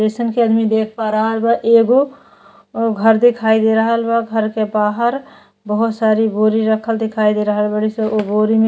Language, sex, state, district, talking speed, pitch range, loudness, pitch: Bhojpuri, female, Uttar Pradesh, Deoria, 205 wpm, 215-230 Hz, -15 LUFS, 220 Hz